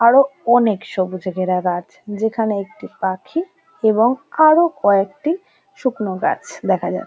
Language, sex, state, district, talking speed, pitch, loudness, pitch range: Bengali, female, West Bengal, North 24 Parganas, 125 wpm, 225 Hz, -18 LUFS, 195-280 Hz